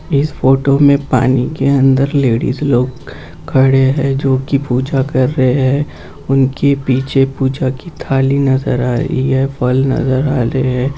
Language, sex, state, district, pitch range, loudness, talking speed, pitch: Hindi, male, West Bengal, Purulia, 130-140 Hz, -14 LUFS, 165 wpm, 135 Hz